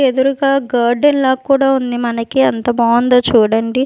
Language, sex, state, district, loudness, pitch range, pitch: Telugu, female, Andhra Pradesh, Sri Satya Sai, -13 LUFS, 235-270 Hz, 250 Hz